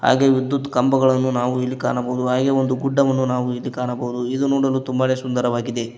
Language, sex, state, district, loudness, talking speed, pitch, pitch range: Kannada, male, Karnataka, Koppal, -20 LUFS, 160 wpm, 130 Hz, 125-135 Hz